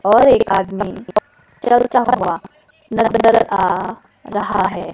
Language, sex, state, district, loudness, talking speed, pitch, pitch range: Hindi, female, Himachal Pradesh, Shimla, -16 LUFS, 110 wpm, 205 Hz, 190-230 Hz